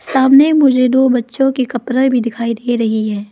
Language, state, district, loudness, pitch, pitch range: Hindi, Arunachal Pradesh, Lower Dibang Valley, -13 LUFS, 255 Hz, 235-265 Hz